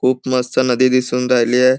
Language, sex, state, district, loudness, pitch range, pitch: Marathi, male, Maharashtra, Nagpur, -16 LUFS, 125-130 Hz, 130 Hz